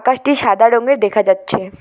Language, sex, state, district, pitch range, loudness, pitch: Bengali, female, West Bengal, Alipurduar, 200-255 Hz, -14 LUFS, 225 Hz